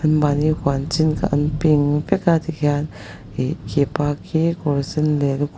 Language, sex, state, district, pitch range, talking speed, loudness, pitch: Mizo, male, Mizoram, Aizawl, 145-155 Hz, 185 wpm, -20 LUFS, 150 Hz